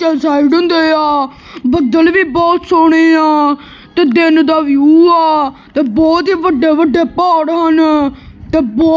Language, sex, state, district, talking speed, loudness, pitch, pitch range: Punjabi, female, Punjab, Kapurthala, 140 wpm, -10 LUFS, 320 Hz, 295-335 Hz